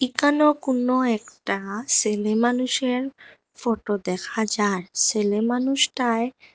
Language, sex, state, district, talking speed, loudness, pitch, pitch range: Bengali, female, Assam, Hailakandi, 90 wpm, -22 LUFS, 235 Hz, 210-255 Hz